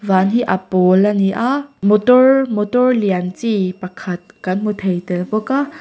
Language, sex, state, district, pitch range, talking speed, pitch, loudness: Mizo, female, Mizoram, Aizawl, 185-245 Hz, 185 wpm, 205 Hz, -16 LUFS